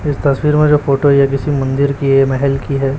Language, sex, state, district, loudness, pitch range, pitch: Hindi, male, Chhattisgarh, Raipur, -14 LUFS, 135-145 Hz, 140 Hz